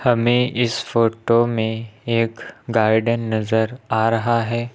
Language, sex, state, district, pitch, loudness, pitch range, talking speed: Hindi, male, Uttar Pradesh, Lucknow, 115 Hz, -20 LUFS, 110-120 Hz, 125 wpm